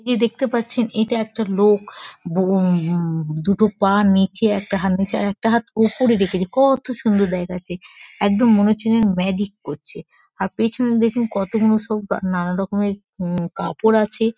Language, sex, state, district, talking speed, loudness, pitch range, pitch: Bengali, female, West Bengal, Kolkata, 160 wpm, -19 LUFS, 190-225 Hz, 205 Hz